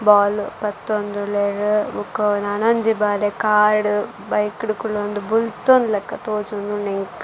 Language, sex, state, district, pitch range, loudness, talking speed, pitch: Tulu, female, Karnataka, Dakshina Kannada, 205-215 Hz, -20 LUFS, 110 wpm, 210 Hz